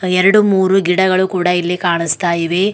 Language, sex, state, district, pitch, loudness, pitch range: Kannada, female, Karnataka, Bidar, 185 Hz, -14 LUFS, 175-190 Hz